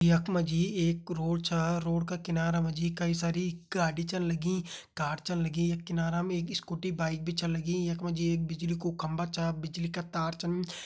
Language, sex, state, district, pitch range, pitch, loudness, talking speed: Hindi, male, Uttarakhand, Uttarkashi, 165-175 Hz, 170 Hz, -32 LUFS, 210 wpm